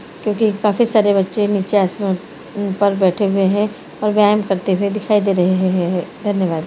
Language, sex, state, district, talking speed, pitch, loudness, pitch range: Hindi, female, Uttarakhand, Uttarkashi, 200 wpm, 200 Hz, -17 LUFS, 190-210 Hz